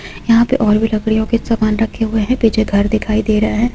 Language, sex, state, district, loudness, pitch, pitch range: Hindi, female, West Bengal, Purulia, -15 LUFS, 220 Hz, 215-230 Hz